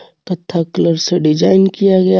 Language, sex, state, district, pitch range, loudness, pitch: Hindi, male, Jharkhand, Garhwa, 165-190 Hz, -13 LUFS, 175 Hz